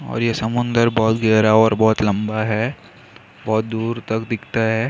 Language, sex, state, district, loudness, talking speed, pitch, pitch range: Hindi, male, Maharashtra, Mumbai Suburban, -18 LUFS, 185 wpm, 110 Hz, 110-115 Hz